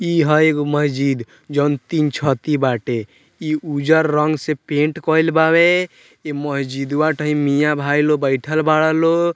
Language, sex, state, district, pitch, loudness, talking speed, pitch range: Bhojpuri, male, Bihar, Muzaffarpur, 150 Hz, -17 LUFS, 145 wpm, 145-155 Hz